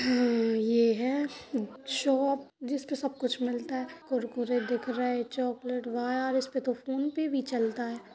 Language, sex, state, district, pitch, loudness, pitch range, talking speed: Hindi, female, Uttar Pradesh, Jalaun, 250 Hz, -30 LUFS, 240-270 Hz, 170 wpm